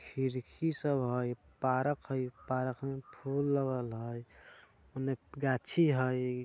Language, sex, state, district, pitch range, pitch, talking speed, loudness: Bajjika, male, Bihar, Vaishali, 125-140 Hz, 130 Hz, 120 wpm, -34 LUFS